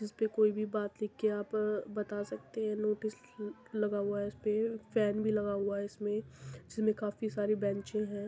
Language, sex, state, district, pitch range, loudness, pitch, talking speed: Hindi, female, Uttar Pradesh, Muzaffarnagar, 205-215 Hz, -35 LUFS, 210 Hz, 190 wpm